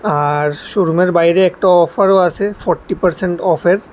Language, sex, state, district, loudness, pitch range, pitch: Bengali, male, Tripura, West Tripura, -14 LUFS, 170-190 Hz, 180 Hz